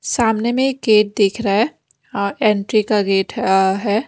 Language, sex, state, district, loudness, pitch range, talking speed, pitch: Hindi, female, Bihar, West Champaran, -17 LUFS, 200-230 Hz, 190 wpm, 215 Hz